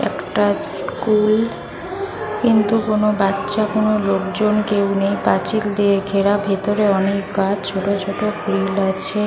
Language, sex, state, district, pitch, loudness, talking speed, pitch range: Bengali, female, West Bengal, North 24 Parganas, 205 Hz, -18 LUFS, 130 wpm, 195-215 Hz